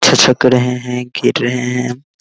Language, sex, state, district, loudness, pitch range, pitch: Hindi, male, Bihar, Araria, -14 LUFS, 125-130 Hz, 125 Hz